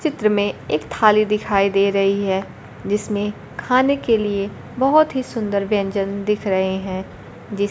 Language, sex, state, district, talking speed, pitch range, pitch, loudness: Hindi, female, Bihar, Kaimur, 155 wpm, 195-215 Hz, 205 Hz, -19 LUFS